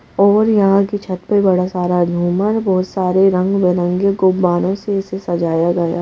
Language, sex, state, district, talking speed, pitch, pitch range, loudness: Hindi, female, Madhya Pradesh, Bhopal, 180 wpm, 185 Hz, 180-195 Hz, -15 LUFS